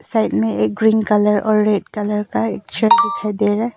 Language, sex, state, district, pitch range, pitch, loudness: Hindi, female, Arunachal Pradesh, Papum Pare, 205-220 Hz, 210 Hz, -17 LUFS